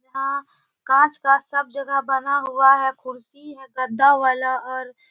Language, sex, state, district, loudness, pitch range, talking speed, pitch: Hindi, female, Uttar Pradesh, Etah, -19 LUFS, 260-280 Hz, 165 wpm, 270 Hz